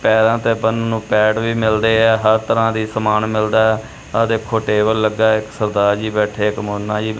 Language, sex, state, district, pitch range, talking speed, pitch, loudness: Punjabi, male, Punjab, Kapurthala, 105-110 Hz, 200 wpm, 110 Hz, -16 LUFS